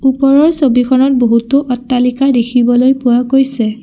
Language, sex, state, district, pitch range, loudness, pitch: Assamese, female, Assam, Kamrup Metropolitan, 245-270 Hz, -11 LUFS, 255 Hz